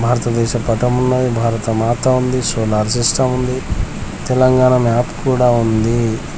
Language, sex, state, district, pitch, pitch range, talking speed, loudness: Telugu, male, Telangana, Komaram Bheem, 120 Hz, 115-125 Hz, 115 wpm, -15 LUFS